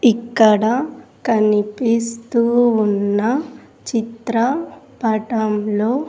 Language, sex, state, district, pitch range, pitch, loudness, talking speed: Telugu, female, Andhra Pradesh, Sri Satya Sai, 215-240 Hz, 230 Hz, -18 LUFS, 60 wpm